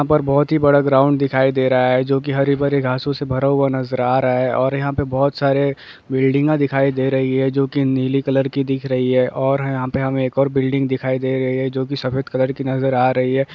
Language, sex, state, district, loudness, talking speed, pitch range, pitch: Hindi, male, Jharkhand, Sahebganj, -18 LUFS, 265 wpm, 130-140 Hz, 135 Hz